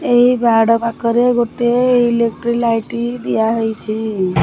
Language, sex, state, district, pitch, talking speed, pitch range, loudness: Odia, male, Odisha, Khordha, 235 Hz, 95 wpm, 225-240 Hz, -15 LUFS